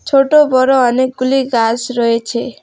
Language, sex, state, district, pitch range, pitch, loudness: Bengali, female, West Bengal, Alipurduar, 235-270 Hz, 255 Hz, -13 LUFS